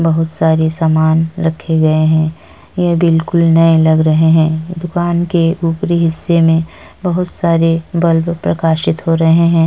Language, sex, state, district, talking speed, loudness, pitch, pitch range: Hindi, female, Uttar Pradesh, Etah, 150 wpm, -13 LUFS, 165 Hz, 160-170 Hz